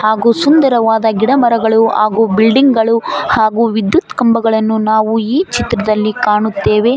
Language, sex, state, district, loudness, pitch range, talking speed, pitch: Kannada, female, Karnataka, Koppal, -12 LUFS, 215-235 Hz, 110 wpm, 225 Hz